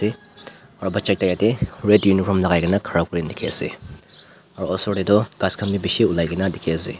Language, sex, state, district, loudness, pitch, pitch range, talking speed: Nagamese, male, Nagaland, Dimapur, -20 LUFS, 95 Hz, 90-105 Hz, 195 wpm